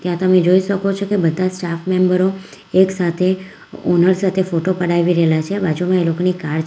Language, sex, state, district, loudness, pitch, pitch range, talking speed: Gujarati, female, Gujarat, Valsad, -17 LUFS, 185 Hz, 175-185 Hz, 190 wpm